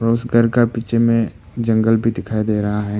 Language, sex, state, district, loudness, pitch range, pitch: Hindi, male, Arunachal Pradesh, Papum Pare, -17 LUFS, 105-115 Hz, 115 Hz